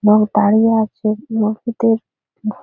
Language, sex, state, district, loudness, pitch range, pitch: Bengali, female, West Bengal, Purulia, -16 LUFS, 215-225 Hz, 215 Hz